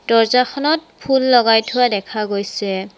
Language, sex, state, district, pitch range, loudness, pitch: Assamese, female, Assam, Sonitpur, 205-255 Hz, -16 LUFS, 230 Hz